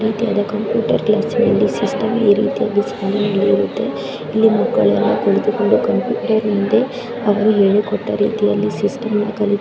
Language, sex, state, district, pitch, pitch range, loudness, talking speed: Kannada, female, Karnataka, Chamarajanagar, 210 Hz, 205-220 Hz, -17 LUFS, 120 wpm